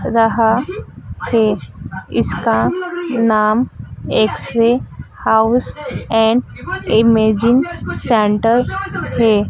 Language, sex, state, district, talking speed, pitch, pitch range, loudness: Hindi, female, Madhya Pradesh, Dhar, 65 wpm, 230 Hz, 220-245 Hz, -16 LUFS